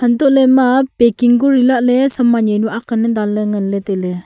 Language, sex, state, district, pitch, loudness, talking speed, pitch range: Wancho, female, Arunachal Pradesh, Longding, 235 Hz, -13 LUFS, 240 wpm, 210-260 Hz